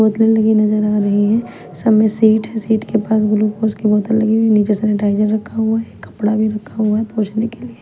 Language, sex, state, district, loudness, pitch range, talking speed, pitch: Hindi, female, Punjab, Kapurthala, -16 LUFS, 210-220 Hz, 245 wpm, 215 Hz